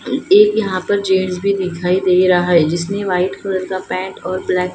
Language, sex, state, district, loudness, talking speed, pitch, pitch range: Hindi, female, Maharashtra, Gondia, -16 LUFS, 215 wpm, 185 Hz, 180-195 Hz